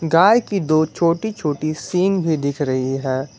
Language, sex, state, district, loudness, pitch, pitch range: Hindi, male, Jharkhand, Garhwa, -19 LUFS, 160 Hz, 140-180 Hz